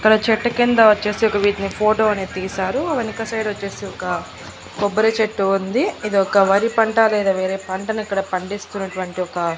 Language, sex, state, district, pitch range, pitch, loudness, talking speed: Telugu, female, Andhra Pradesh, Annamaya, 195-220 Hz, 205 Hz, -19 LUFS, 165 wpm